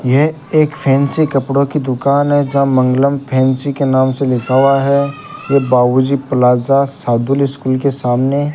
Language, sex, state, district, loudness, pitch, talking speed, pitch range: Hindi, male, Rajasthan, Bikaner, -14 LUFS, 140 Hz, 170 wpm, 130-140 Hz